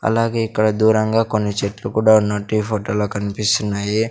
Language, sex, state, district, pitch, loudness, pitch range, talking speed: Telugu, male, Andhra Pradesh, Sri Satya Sai, 110 Hz, -18 LUFS, 105-110 Hz, 145 wpm